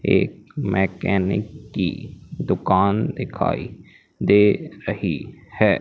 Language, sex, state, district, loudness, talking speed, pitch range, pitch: Hindi, male, Madhya Pradesh, Umaria, -22 LUFS, 80 wpm, 95-105 Hz, 100 Hz